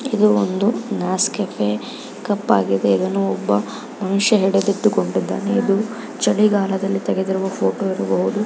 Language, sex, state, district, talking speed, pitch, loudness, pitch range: Kannada, female, Karnataka, Raichur, 105 wpm, 195 Hz, -19 LUFS, 185-210 Hz